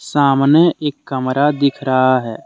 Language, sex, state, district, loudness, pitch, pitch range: Hindi, male, Jharkhand, Deoghar, -15 LUFS, 135 Hz, 130-145 Hz